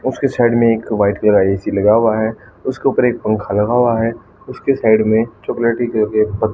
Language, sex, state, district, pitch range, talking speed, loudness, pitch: Hindi, female, Haryana, Charkhi Dadri, 105-120 Hz, 190 wpm, -15 LUFS, 110 Hz